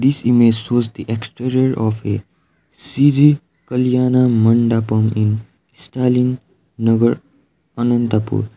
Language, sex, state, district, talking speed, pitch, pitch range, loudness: English, male, Sikkim, Gangtok, 100 wpm, 120 Hz, 110-125 Hz, -16 LUFS